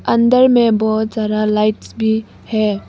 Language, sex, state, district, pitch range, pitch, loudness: Hindi, female, Arunachal Pradesh, Papum Pare, 215-230 Hz, 220 Hz, -15 LUFS